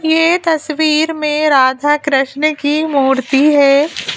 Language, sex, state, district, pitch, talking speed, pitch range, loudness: Hindi, female, Madhya Pradesh, Bhopal, 300 Hz, 115 wpm, 280-315 Hz, -13 LUFS